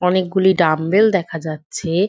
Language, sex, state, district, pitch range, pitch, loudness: Bengali, female, West Bengal, Dakshin Dinajpur, 165-190 Hz, 180 Hz, -17 LUFS